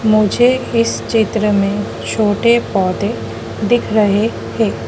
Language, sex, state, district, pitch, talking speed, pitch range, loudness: Hindi, female, Madhya Pradesh, Dhar, 215 Hz, 110 wpm, 200-230 Hz, -15 LUFS